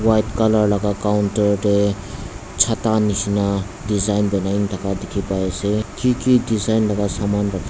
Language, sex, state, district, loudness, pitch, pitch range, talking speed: Nagamese, male, Nagaland, Dimapur, -19 LUFS, 100 Hz, 100-110 Hz, 130 wpm